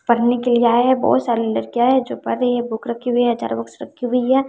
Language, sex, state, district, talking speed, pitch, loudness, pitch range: Hindi, female, Bihar, West Champaran, 265 wpm, 240 Hz, -18 LUFS, 235-250 Hz